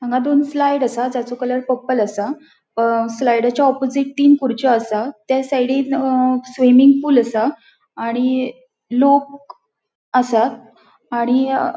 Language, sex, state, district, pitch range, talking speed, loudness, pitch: Konkani, female, Goa, North and South Goa, 240-280 Hz, 120 wpm, -17 LUFS, 255 Hz